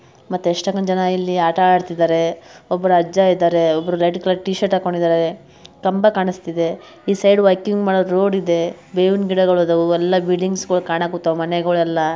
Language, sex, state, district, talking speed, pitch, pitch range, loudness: Kannada, male, Karnataka, Bijapur, 145 wpm, 180 Hz, 170-190 Hz, -17 LUFS